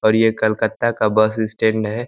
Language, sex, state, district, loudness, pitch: Hindi, male, Uttar Pradesh, Ghazipur, -18 LUFS, 110 Hz